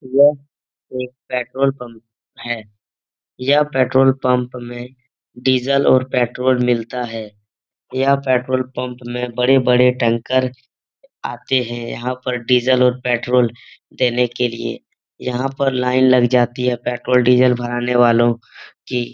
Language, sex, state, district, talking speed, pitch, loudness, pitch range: Hindi, male, Bihar, Jahanabad, 140 wpm, 125 Hz, -18 LUFS, 120-130 Hz